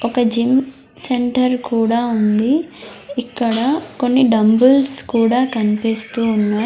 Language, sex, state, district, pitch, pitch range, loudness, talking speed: Telugu, female, Andhra Pradesh, Sri Satya Sai, 240 Hz, 225-255 Hz, -16 LUFS, 100 wpm